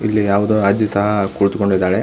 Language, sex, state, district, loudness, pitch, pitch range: Kannada, male, Karnataka, Belgaum, -16 LUFS, 100 Hz, 100-105 Hz